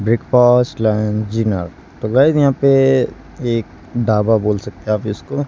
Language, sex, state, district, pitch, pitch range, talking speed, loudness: Hindi, male, Haryana, Charkhi Dadri, 110 Hz, 105-125 Hz, 145 wpm, -16 LUFS